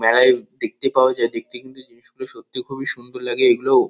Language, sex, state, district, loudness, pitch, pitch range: Bengali, male, West Bengal, Kolkata, -19 LUFS, 130 Hz, 125-185 Hz